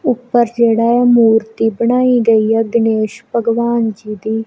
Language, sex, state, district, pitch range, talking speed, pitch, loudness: Punjabi, female, Punjab, Kapurthala, 225-235 Hz, 135 wpm, 230 Hz, -14 LUFS